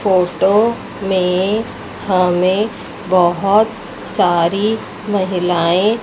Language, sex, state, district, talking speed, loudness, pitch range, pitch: Hindi, female, Chandigarh, Chandigarh, 60 wpm, -16 LUFS, 180-210 Hz, 190 Hz